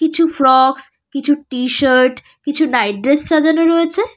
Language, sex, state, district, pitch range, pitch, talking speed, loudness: Bengali, female, West Bengal, Cooch Behar, 260-320 Hz, 290 Hz, 130 wpm, -14 LUFS